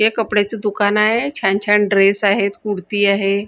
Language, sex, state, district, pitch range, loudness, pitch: Marathi, female, Maharashtra, Gondia, 200-210 Hz, -16 LUFS, 205 Hz